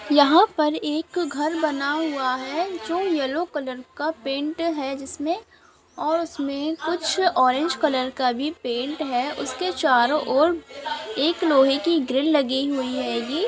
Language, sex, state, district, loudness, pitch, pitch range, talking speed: Hindi, female, Andhra Pradesh, Chittoor, -23 LUFS, 300 Hz, 270-325 Hz, 145 wpm